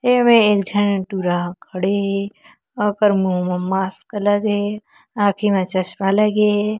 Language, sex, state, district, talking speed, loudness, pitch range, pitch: Chhattisgarhi, female, Chhattisgarh, Korba, 170 wpm, -18 LUFS, 190-210 Hz, 205 Hz